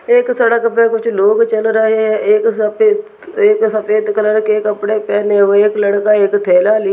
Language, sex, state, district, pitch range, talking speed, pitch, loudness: Hindi, male, Rajasthan, Nagaur, 210-230 Hz, 190 wpm, 215 Hz, -13 LUFS